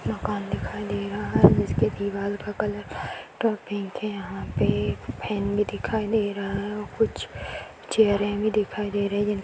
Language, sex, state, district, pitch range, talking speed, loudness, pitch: Kumaoni, female, Uttarakhand, Tehri Garhwal, 200-210 Hz, 185 wpm, -26 LUFS, 205 Hz